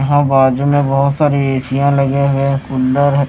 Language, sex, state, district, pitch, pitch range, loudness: Hindi, male, Chhattisgarh, Raipur, 140 Hz, 135-140 Hz, -14 LUFS